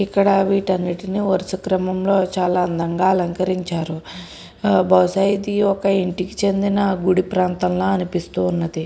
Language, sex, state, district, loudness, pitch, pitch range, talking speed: Telugu, female, Andhra Pradesh, Srikakulam, -19 LUFS, 185 Hz, 180-195 Hz, 110 wpm